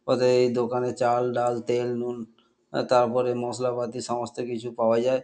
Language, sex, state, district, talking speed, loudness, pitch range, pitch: Bengali, male, West Bengal, Kolkata, 160 wpm, -25 LUFS, 120-125 Hz, 120 Hz